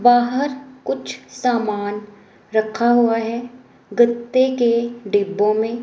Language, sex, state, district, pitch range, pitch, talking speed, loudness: Hindi, female, Himachal Pradesh, Shimla, 215-245 Hz, 235 Hz, 105 wpm, -19 LUFS